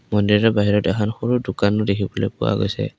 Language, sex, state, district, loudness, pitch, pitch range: Assamese, male, Assam, Kamrup Metropolitan, -20 LUFS, 105 Hz, 100-115 Hz